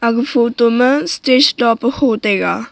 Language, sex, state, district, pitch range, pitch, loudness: Wancho, female, Arunachal Pradesh, Longding, 235-265 Hz, 245 Hz, -14 LUFS